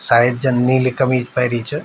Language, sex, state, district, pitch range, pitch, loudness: Garhwali, male, Uttarakhand, Tehri Garhwal, 120-130 Hz, 125 Hz, -16 LUFS